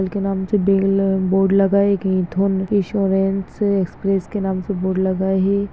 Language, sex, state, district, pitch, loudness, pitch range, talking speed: Hindi, female, Bihar, Begusarai, 195 Hz, -19 LUFS, 190-200 Hz, 155 wpm